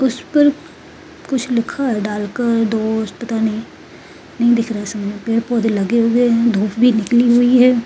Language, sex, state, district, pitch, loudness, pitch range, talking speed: Hindi, female, Uttarakhand, Tehri Garhwal, 235 Hz, -16 LUFS, 220-245 Hz, 160 wpm